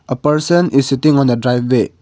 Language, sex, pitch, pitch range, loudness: English, male, 135 Hz, 125-150 Hz, -14 LUFS